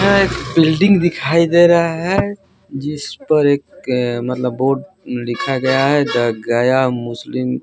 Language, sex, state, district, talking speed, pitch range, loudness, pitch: Hindi, male, Bihar, Kaimur, 140 wpm, 125-170 Hz, -16 LUFS, 135 Hz